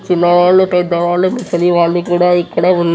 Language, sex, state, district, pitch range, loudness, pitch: Telugu, male, Telangana, Nalgonda, 175-180 Hz, -12 LUFS, 175 Hz